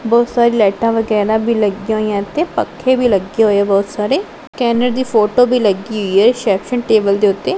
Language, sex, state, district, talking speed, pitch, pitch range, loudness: Punjabi, female, Punjab, Pathankot, 205 wpm, 220 Hz, 205-240 Hz, -14 LUFS